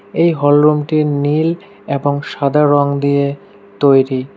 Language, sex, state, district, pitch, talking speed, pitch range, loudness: Bengali, male, West Bengal, Alipurduar, 145 Hz, 110 wpm, 140-150 Hz, -14 LUFS